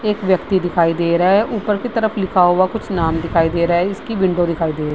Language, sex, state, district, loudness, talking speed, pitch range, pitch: Hindi, female, Bihar, Vaishali, -17 LUFS, 280 wpm, 170-205 Hz, 185 Hz